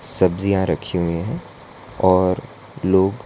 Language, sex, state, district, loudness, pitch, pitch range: Hindi, male, Gujarat, Valsad, -20 LUFS, 95 Hz, 90-95 Hz